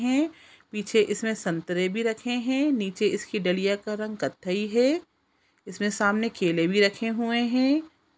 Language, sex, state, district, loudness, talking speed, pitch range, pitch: Hindi, female, Bihar, Jamui, -26 LUFS, 155 wpm, 200-245 Hz, 215 Hz